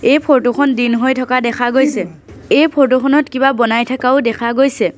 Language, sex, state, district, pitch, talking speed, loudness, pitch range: Assamese, female, Assam, Sonitpur, 260 Hz, 190 wpm, -13 LUFS, 245-275 Hz